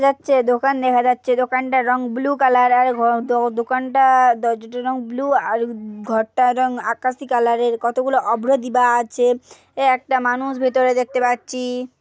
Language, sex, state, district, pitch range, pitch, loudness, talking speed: Bengali, female, West Bengal, Jhargram, 240-255 Hz, 250 Hz, -18 LUFS, 150 wpm